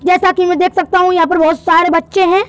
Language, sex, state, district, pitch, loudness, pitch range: Hindi, male, Madhya Pradesh, Bhopal, 360 Hz, -12 LUFS, 335-370 Hz